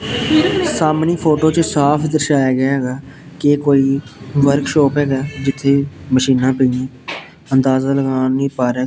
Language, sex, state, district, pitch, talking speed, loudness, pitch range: Punjabi, male, Punjab, Pathankot, 140 Hz, 140 wpm, -16 LUFS, 130-150 Hz